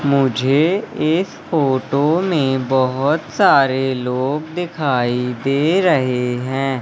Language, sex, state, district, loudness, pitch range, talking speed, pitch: Hindi, male, Madhya Pradesh, Katni, -17 LUFS, 130-155 Hz, 95 wpm, 135 Hz